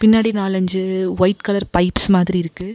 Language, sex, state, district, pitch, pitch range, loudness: Tamil, female, Tamil Nadu, Nilgiris, 190 Hz, 185-200 Hz, -18 LUFS